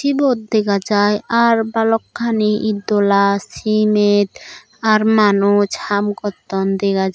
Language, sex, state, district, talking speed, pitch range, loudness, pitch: Chakma, female, Tripura, Dhalai, 110 wpm, 200-220 Hz, -16 LUFS, 210 Hz